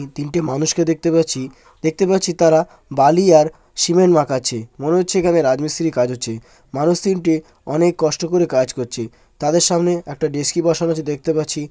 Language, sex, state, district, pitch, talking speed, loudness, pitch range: Bengali, male, West Bengal, Jalpaiguri, 160 Hz, 170 wpm, -17 LUFS, 140-170 Hz